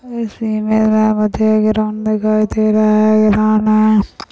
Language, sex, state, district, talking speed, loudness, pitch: Hindi, female, Chhattisgarh, Bastar, 140 wpm, -14 LUFS, 215 Hz